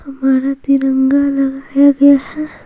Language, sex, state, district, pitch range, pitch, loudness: Hindi, female, Bihar, Patna, 270-280 Hz, 275 Hz, -13 LUFS